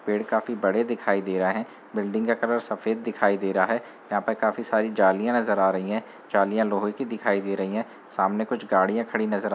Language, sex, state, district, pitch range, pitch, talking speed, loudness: Hindi, male, Uttar Pradesh, Muzaffarnagar, 100-115 Hz, 105 Hz, 240 wpm, -25 LUFS